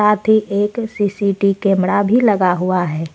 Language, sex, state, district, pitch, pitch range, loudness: Hindi, female, Jharkhand, Ranchi, 200 Hz, 185-210 Hz, -16 LUFS